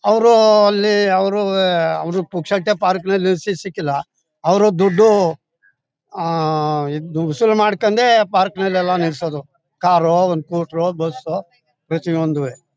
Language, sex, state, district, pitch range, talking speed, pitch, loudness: Kannada, male, Karnataka, Mysore, 160-200 Hz, 115 wpm, 175 Hz, -17 LUFS